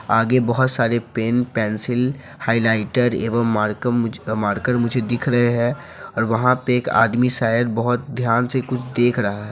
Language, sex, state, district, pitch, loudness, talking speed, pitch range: Hindi, male, Bihar, Sitamarhi, 120 Hz, -20 LUFS, 165 wpm, 115-125 Hz